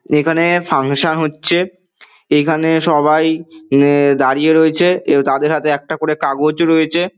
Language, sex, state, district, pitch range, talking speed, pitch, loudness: Bengali, male, West Bengal, Dakshin Dinajpur, 150-165 Hz, 100 wpm, 155 Hz, -14 LUFS